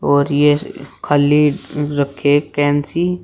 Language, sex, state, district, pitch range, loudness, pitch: Hindi, male, Uttar Pradesh, Shamli, 145-150 Hz, -16 LUFS, 145 Hz